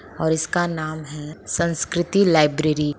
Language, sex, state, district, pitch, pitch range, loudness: Hindi, female, Bihar, Begusarai, 160 Hz, 150-170 Hz, -21 LUFS